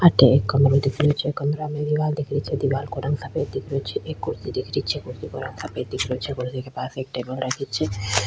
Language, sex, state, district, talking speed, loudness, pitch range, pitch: Rajasthani, female, Rajasthan, Churu, 275 wpm, -24 LUFS, 130-145 Hz, 135 Hz